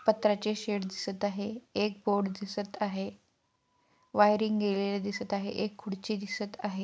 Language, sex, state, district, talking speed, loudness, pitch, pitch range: Marathi, female, Maharashtra, Pune, 140 wpm, -32 LUFS, 205 Hz, 195-210 Hz